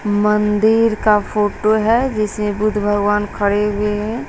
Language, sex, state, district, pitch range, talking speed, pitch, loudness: Hindi, female, Bihar, West Champaran, 205-215 Hz, 140 wpm, 210 Hz, -16 LUFS